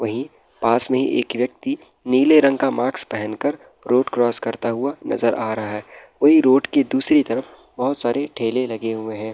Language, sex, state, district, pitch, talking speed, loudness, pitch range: Hindi, male, Bihar, Araria, 125 Hz, 195 wpm, -20 LUFS, 115-145 Hz